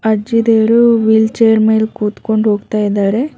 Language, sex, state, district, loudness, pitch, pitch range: Kannada, female, Karnataka, Bangalore, -12 LUFS, 220 Hz, 210-225 Hz